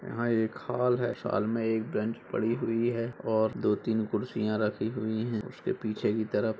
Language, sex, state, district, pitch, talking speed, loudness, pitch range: Hindi, male, Uttar Pradesh, Budaun, 110 Hz, 210 wpm, -30 LUFS, 110-115 Hz